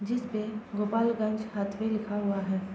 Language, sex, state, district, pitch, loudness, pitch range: Hindi, female, Bihar, Gopalganj, 215 Hz, -31 LUFS, 200-220 Hz